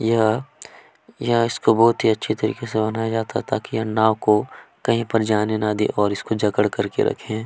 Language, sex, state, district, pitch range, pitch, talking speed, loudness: Hindi, male, Chhattisgarh, Kabirdham, 105-115 Hz, 110 Hz, 200 wpm, -21 LUFS